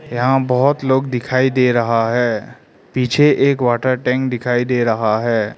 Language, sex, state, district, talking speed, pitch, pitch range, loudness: Hindi, male, Arunachal Pradesh, Lower Dibang Valley, 160 wpm, 125 Hz, 120-130 Hz, -16 LUFS